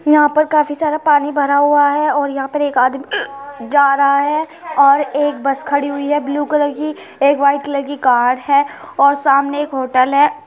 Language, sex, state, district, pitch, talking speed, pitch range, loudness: Hindi, female, Uttar Pradesh, Muzaffarnagar, 285 Hz, 205 wpm, 280-295 Hz, -15 LUFS